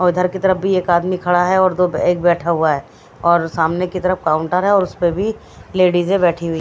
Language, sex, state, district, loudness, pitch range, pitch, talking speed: Hindi, female, Haryana, Rohtak, -16 LUFS, 170-185 Hz, 180 Hz, 235 wpm